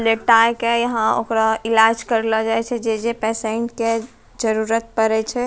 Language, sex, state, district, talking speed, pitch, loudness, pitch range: Angika, female, Bihar, Bhagalpur, 155 wpm, 225 Hz, -19 LUFS, 220-235 Hz